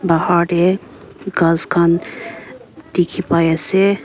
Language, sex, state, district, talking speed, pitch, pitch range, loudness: Nagamese, female, Nagaland, Kohima, 105 wpm, 175 Hz, 170-185 Hz, -16 LUFS